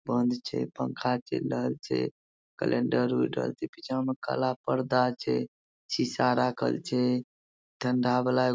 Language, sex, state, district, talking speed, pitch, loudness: Maithili, male, Bihar, Madhepura, 145 wpm, 120 Hz, -29 LUFS